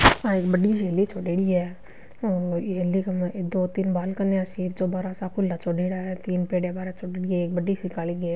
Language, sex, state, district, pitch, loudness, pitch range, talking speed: Marwari, female, Rajasthan, Nagaur, 185 Hz, -26 LUFS, 180-190 Hz, 230 wpm